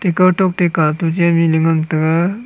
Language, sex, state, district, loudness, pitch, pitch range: Wancho, male, Arunachal Pradesh, Longding, -15 LUFS, 170 Hz, 160-180 Hz